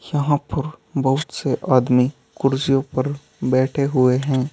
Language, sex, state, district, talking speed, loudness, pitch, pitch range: Hindi, male, Uttar Pradesh, Saharanpur, 130 wpm, -20 LUFS, 135 Hz, 130-145 Hz